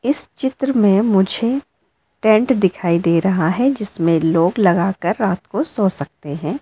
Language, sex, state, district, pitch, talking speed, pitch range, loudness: Hindi, female, Arunachal Pradesh, Lower Dibang Valley, 195 Hz, 155 wpm, 170-230 Hz, -17 LUFS